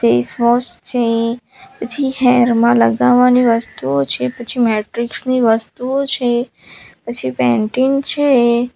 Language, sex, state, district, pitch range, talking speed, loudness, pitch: Gujarati, female, Gujarat, Valsad, 220-250 Hz, 110 wpm, -15 LUFS, 235 Hz